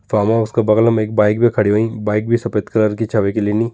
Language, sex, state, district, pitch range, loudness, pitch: Kumaoni, male, Uttarakhand, Tehri Garhwal, 105-115 Hz, -16 LUFS, 110 Hz